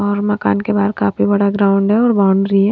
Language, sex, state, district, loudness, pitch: Hindi, female, Haryana, Rohtak, -14 LUFS, 200 Hz